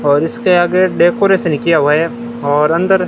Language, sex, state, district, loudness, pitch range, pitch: Hindi, male, Rajasthan, Bikaner, -13 LUFS, 150-190 Hz, 175 Hz